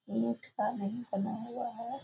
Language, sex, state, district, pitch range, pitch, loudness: Maithili, female, Bihar, Muzaffarpur, 200-240 Hz, 220 Hz, -36 LUFS